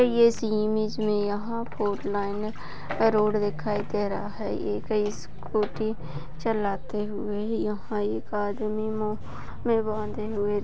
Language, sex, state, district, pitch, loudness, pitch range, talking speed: Hindi, female, Maharashtra, Dhule, 210 Hz, -28 LUFS, 205-215 Hz, 125 wpm